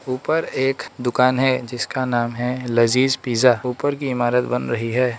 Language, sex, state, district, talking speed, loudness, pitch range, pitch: Hindi, male, Arunachal Pradesh, Lower Dibang Valley, 175 wpm, -20 LUFS, 120-130 Hz, 125 Hz